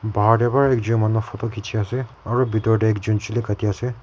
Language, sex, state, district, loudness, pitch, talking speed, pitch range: Nagamese, male, Nagaland, Kohima, -21 LUFS, 110 Hz, 225 wpm, 110-120 Hz